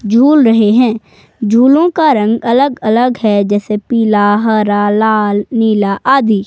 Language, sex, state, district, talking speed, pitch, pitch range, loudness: Hindi, female, Himachal Pradesh, Shimla, 140 wpm, 220 Hz, 210-245 Hz, -11 LUFS